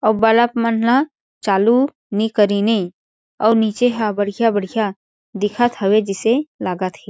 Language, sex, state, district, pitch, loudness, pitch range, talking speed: Chhattisgarhi, female, Chhattisgarh, Jashpur, 220 Hz, -18 LUFS, 200-230 Hz, 145 wpm